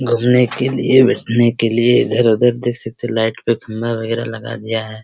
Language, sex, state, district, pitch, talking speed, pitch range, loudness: Hindi, male, Bihar, Araria, 115 Hz, 200 wpm, 115-120 Hz, -16 LUFS